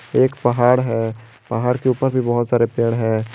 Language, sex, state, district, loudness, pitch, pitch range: Hindi, male, Jharkhand, Garhwa, -18 LUFS, 120 Hz, 115-125 Hz